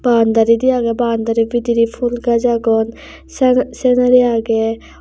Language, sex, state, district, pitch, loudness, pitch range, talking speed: Chakma, female, Tripura, West Tripura, 235 Hz, -15 LUFS, 230-245 Hz, 130 wpm